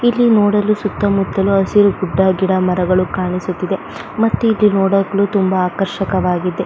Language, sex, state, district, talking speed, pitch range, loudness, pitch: Kannada, female, Karnataka, Belgaum, 125 wpm, 185-205 Hz, -15 LUFS, 195 Hz